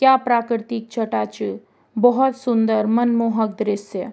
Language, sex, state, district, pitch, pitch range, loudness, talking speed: Garhwali, female, Uttarakhand, Tehri Garhwal, 230 Hz, 220-240 Hz, -20 LUFS, 115 wpm